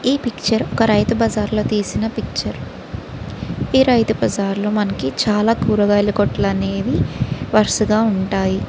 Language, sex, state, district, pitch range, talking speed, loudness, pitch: Telugu, female, Andhra Pradesh, Srikakulam, 200-225 Hz, 115 wpm, -18 LUFS, 210 Hz